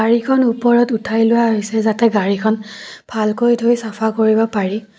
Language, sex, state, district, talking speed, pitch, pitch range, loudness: Assamese, female, Assam, Kamrup Metropolitan, 145 wpm, 225 Hz, 215-235 Hz, -16 LUFS